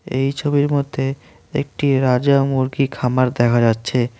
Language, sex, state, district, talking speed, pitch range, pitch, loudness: Bengali, male, West Bengal, Cooch Behar, 130 wpm, 125-140 Hz, 135 Hz, -18 LUFS